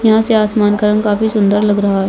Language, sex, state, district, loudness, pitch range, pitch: Hindi, female, Bihar, Begusarai, -13 LUFS, 205-220 Hz, 210 Hz